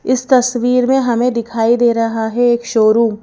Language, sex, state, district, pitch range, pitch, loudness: Hindi, female, Madhya Pradesh, Bhopal, 230-250 Hz, 240 Hz, -14 LUFS